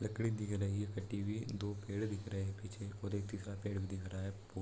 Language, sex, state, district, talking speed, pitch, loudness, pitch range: Hindi, male, Chhattisgarh, Raigarh, 260 wpm, 100 Hz, -42 LUFS, 100-105 Hz